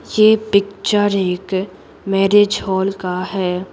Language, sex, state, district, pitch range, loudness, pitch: Hindi, female, Bihar, Patna, 185-205 Hz, -17 LUFS, 195 Hz